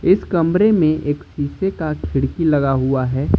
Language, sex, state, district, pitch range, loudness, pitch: Hindi, male, Uttar Pradesh, Lucknow, 135-175 Hz, -18 LUFS, 155 Hz